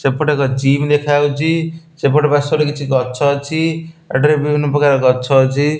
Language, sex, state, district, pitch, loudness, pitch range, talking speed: Odia, male, Odisha, Nuapada, 145 Hz, -15 LUFS, 140-155 Hz, 165 wpm